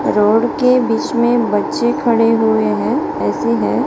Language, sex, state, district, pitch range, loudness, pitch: Hindi, female, Gujarat, Gandhinagar, 210-245 Hz, -15 LUFS, 230 Hz